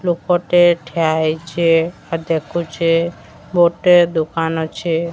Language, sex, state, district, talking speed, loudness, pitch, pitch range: Odia, female, Odisha, Sambalpur, 95 wpm, -17 LUFS, 165 Hz, 165-175 Hz